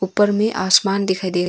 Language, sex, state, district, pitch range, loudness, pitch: Hindi, female, Arunachal Pradesh, Longding, 185-205 Hz, -17 LUFS, 190 Hz